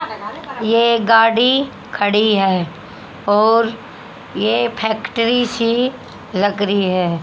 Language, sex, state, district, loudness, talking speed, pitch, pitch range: Hindi, female, Haryana, Jhajjar, -16 LUFS, 100 wpm, 225 Hz, 205-235 Hz